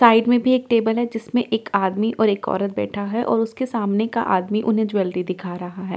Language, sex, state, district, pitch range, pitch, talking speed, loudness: Hindi, female, Delhi, New Delhi, 195-230 Hz, 220 Hz, 240 wpm, -21 LUFS